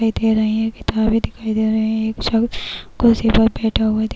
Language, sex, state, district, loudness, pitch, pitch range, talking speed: Hindi, female, Uttar Pradesh, Jyotiba Phule Nagar, -18 LUFS, 220 Hz, 220-225 Hz, 230 wpm